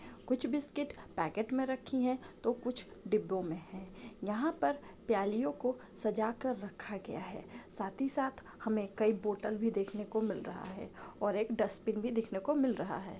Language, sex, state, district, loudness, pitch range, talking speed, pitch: Hindi, female, Uttarakhand, Uttarkashi, -36 LUFS, 205-255 Hz, 185 wpm, 220 Hz